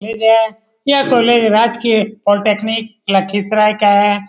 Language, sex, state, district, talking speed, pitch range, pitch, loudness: Hindi, male, Bihar, Lakhisarai, 110 wpm, 205-225 Hz, 220 Hz, -13 LUFS